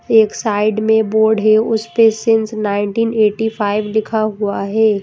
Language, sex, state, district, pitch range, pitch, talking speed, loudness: Hindi, female, Madhya Pradesh, Bhopal, 210-220 Hz, 220 Hz, 155 wpm, -15 LUFS